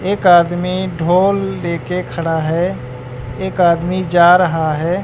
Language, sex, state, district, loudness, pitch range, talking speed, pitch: Hindi, male, Bihar, West Champaran, -15 LUFS, 165-185 Hz, 130 wpm, 175 Hz